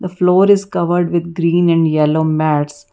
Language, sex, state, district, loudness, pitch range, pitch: English, female, Karnataka, Bangalore, -14 LUFS, 155-175 Hz, 170 Hz